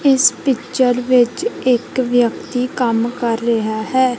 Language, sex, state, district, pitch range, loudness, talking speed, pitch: Punjabi, female, Punjab, Kapurthala, 235-260 Hz, -17 LUFS, 130 wpm, 245 Hz